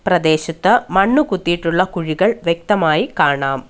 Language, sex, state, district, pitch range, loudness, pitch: Malayalam, female, Kerala, Kollam, 160-195 Hz, -16 LUFS, 170 Hz